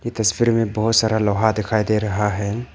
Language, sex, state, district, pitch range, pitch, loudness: Hindi, male, Arunachal Pradesh, Papum Pare, 105-115 Hz, 110 Hz, -19 LUFS